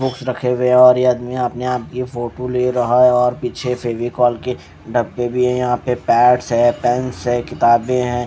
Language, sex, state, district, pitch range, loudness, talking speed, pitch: Hindi, male, Haryana, Charkhi Dadri, 120-125 Hz, -16 LUFS, 210 wpm, 125 Hz